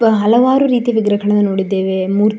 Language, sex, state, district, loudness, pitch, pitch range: Kannada, female, Karnataka, Shimoga, -14 LUFS, 210 Hz, 195-230 Hz